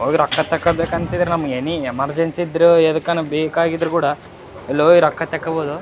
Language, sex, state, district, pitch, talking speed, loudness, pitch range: Kannada, male, Karnataka, Raichur, 165 Hz, 145 wpm, -17 LUFS, 155-170 Hz